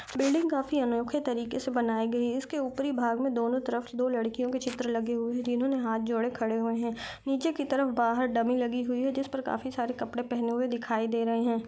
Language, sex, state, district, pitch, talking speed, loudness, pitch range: Hindi, female, Chhattisgarh, Rajnandgaon, 245 Hz, 235 wpm, -30 LUFS, 235-265 Hz